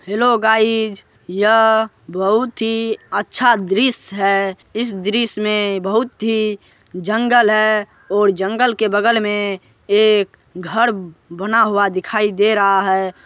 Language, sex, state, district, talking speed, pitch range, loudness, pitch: Hindi, male, Bihar, Supaul, 125 wpm, 195-225 Hz, -16 LUFS, 210 Hz